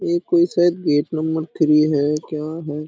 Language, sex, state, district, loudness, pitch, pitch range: Hindi, male, Jharkhand, Sahebganj, -19 LUFS, 155 Hz, 150-170 Hz